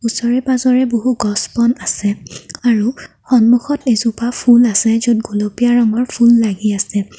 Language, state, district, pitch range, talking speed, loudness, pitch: Assamese, Assam, Kamrup Metropolitan, 210-245 Hz, 125 wpm, -14 LUFS, 235 Hz